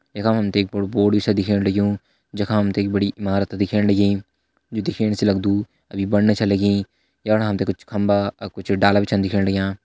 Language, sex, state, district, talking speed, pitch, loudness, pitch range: Hindi, male, Uttarakhand, Tehri Garhwal, 205 wpm, 100 Hz, -20 LUFS, 100-105 Hz